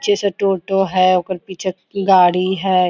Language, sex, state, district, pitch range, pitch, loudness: Hindi, female, Jharkhand, Sahebganj, 185-195 Hz, 190 Hz, -16 LUFS